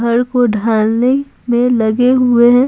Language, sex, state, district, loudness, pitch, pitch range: Hindi, female, Bihar, Patna, -13 LUFS, 240 Hz, 230-250 Hz